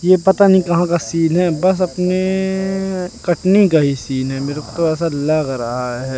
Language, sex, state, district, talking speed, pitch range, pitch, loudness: Hindi, male, Madhya Pradesh, Katni, 205 wpm, 145-185 Hz, 170 Hz, -16 LUFS